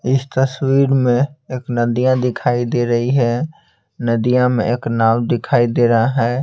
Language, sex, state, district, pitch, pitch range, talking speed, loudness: Hindi, male, Bihar, Patna, 125 Hz, 120-130 Hz, 160 wpm, -16 LUFS